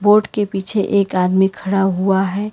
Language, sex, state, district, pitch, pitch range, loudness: Hindi, female, Karnataka, Bangalore, 195 Hz, 190-205 Hz, -17 LUFS